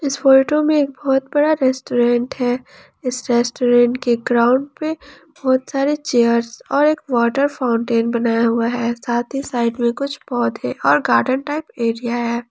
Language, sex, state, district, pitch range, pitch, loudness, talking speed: Hindi, female, Jharkhand, Palamu, 235-280 Hz, 250 Hz, -18 LUFS, 165 wpm